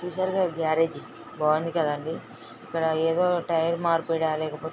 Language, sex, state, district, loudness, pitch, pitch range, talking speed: Telugu, female, Andhra Pradesh, Srikakulam, -26 LUFS, 165 Hz, 160-170 Hz, 125 wpm